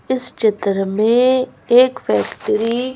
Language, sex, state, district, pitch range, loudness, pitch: Hindi, female, Madhya Pradesh, Bhopal, 215-255 Hz, -16 LUFS, 240 Hz